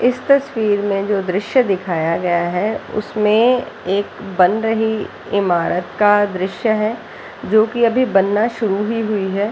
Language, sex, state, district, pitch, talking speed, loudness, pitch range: Hindi, female, Bihar, Jahanabad, 210 Hz, 150 wpm, -17 LUFS, 195-225 Hz